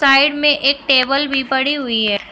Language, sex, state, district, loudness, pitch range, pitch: Hindi, female, Uttar Pradesh, Shamli, -14 LUFS, 265-285 Hz, 275 Hz